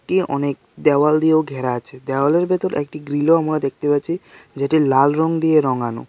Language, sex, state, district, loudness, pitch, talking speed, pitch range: Bengali, male, Tripura, West Tripura, -18 LUFS, 145 Hz, 185 wpm, 135-160 Hz